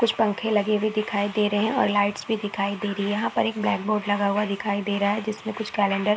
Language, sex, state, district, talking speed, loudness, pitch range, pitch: Hindi, female, Chhattisgarh, Korba, 290 wpm, -24 LUFS, 205-215 Hz, 210 Hz